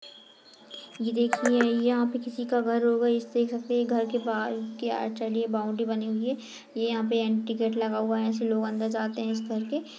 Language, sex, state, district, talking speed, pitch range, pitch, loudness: Hindi, female, Chhattisgarh, Kabirdham, 200 wpm, 225-240 Hz, 230 Hz, -28 LUFS